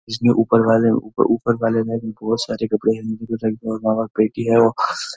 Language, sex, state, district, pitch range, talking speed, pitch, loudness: Hindi, male, Uttarakhand, Uttarkashi, 110-115 Hz, 195 wpm, 115 Hz, -19 LUFS